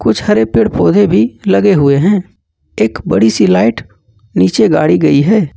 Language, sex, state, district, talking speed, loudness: Hindi, male, Jharkhand, Ranchi, 160 wpm, -11 LUFS